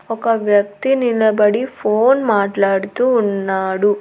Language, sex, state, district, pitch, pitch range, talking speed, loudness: Telugu, female, Andhra Pradesh, Annamaya, 210 Hz, 200-235 Hz, 90 wpm, -16 LUFS